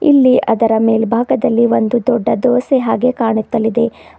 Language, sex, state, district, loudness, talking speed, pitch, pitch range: Kannada, female, Karnataka, Bidar, -14 LUFS, 115 wpm, 235 Hz, 225-250 Hz